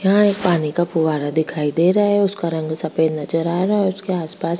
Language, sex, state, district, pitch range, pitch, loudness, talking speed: Hindi, female, Bihar, Kishanganj, 160-190 Hz, 170 Hz, -19 LUFS, 250 wpm